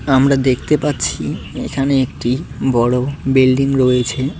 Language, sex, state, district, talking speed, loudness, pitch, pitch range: Bengali, male, West Bengal, Cooch Behar, 110 wpm, -16 LUFS, 135 Hz, 125-140 Hz